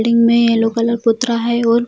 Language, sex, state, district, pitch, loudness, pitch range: Hindi, female, Bihar, Jamui, 235 Hz, -15 LUFS, 230-235 Hz